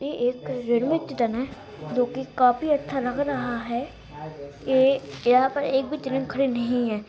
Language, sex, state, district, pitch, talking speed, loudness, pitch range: Hindi, female, Bihar, Gaya, 255 Hz, 170 wpm, -24 LUFS, 240-270 Hz